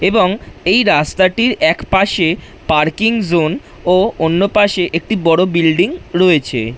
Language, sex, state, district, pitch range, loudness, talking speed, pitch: Bengali, male, West Bengal, Jhargram, 160-200 Hz, -14 LUFS, 115 wpm, 175 Hz